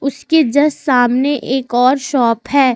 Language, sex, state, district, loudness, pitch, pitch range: Hindi, female, Jharkhand, Ranchi, -14 LUFS, 265 Hz, 250-285 Hz